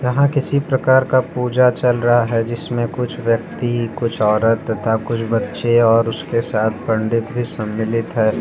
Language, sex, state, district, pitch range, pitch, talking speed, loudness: Hindi, male, Jharkhand, Deoghar, 115-125 Hz, 115 Hz, 165 wpm, -18 LUFS